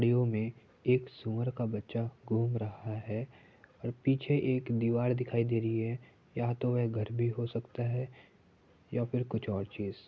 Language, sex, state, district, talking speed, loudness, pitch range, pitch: Hindi, male, Uttar Pradesh, Muzaffarnagar, 170 wpm, -34 LUFS, 110-125 Hz, 120 Hz